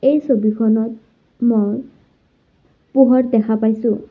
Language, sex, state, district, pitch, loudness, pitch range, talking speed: Assamese, female, Assam, Sonitpur, 225 Hz, -17 LUFS, 220-255 Hz, 85 wpm